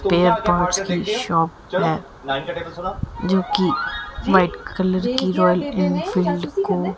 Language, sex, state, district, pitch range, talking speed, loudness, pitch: Hindi, female, Haryana, Jhajjar, 170-190 Hz, 105 wpm, -20 LUFS, 180 Hz